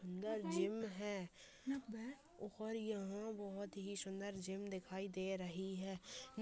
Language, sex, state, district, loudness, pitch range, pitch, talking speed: Hindi, female, Uttar Pradesh, Deoria, -46 LUFS, 190-220 Hz, 200 Hz, 120 wpm